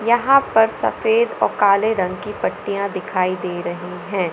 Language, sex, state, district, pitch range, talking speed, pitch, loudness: Hindi, female, Madhya Pradesh, Katni, 185-225 Hz, 165 wpm, 200 Hz, -19 LUFS